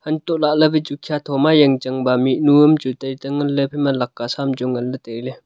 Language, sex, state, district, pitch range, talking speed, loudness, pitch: Wancho, male, Arunachal Pradesh, Longding, 130-150 Hz, 210 wpm, -18 LUFS, 140 Hz